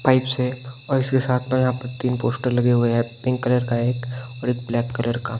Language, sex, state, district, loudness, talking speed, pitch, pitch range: Hindi, male, Himachal Pradesh, Shimla, -22 LUFS, 255 wpm, 125 Hz, 120-130 Hz